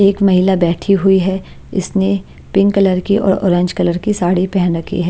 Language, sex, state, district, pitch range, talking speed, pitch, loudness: Hindi, female, Himachal Pradesh, Shimla, 180-195 Hz, 200 wpm, 190 Hz, -15 LUFS